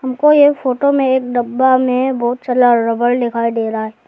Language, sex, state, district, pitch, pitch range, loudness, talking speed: Hindi, male, Arunachal Pradesh, Lower Dibang Valley, 250 Hz, 235-260 Hz, -14 LUFS, 205 wpm